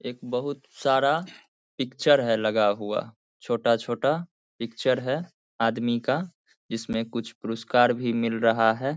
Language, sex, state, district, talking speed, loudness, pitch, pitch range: Hindi, male, Bihar, Saharsa, 125 wpm, -25 LUFS, 120 Hz, 115-135 Hz